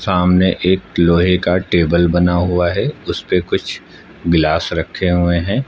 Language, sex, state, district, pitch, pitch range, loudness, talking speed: Hindi, male, Uttar Pradesh, Lucknow, 90 Hz, 85-90 Hz, -15 LUFS, 160 wpm